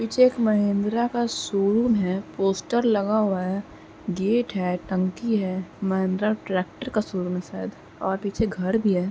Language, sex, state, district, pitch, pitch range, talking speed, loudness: Hindi, female, Uttar Pradesh, Muzaffarnagar, 200 Hz, 185-225 Hz, 165 wpm, -24 LUFS